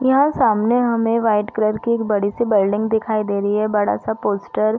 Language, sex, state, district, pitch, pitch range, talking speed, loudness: Hindi, female, Uttar Pradesh, Deoria, 215 Hz, 205-230 Hz, 240 wpm, -18 LUFS